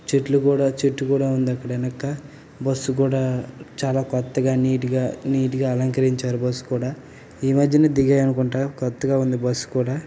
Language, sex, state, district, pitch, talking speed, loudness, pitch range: Telugu, male, Telangana, Nalgonda, 135 Hz, 145 wpm, -22 LUFS, 130-140 Hz